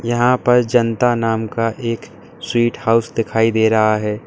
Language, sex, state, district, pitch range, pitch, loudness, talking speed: Hindi, male, Uttar Pradesh, Saharanpur, 110-120 Hz, 115 Hz, -17 LUFS, 170 wpm